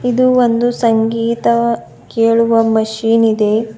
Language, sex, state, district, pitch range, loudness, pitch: Kannada, female, Karnataka, Bidar, 225-235 Hz, -13 LUFS, 230 Hz